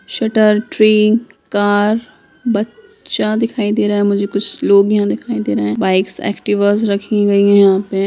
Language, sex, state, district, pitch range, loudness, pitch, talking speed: Hindi, female, Bihar, Sitamarhi, 200-215 Hz, -14 LUFS, 205 Hz, 170 wpm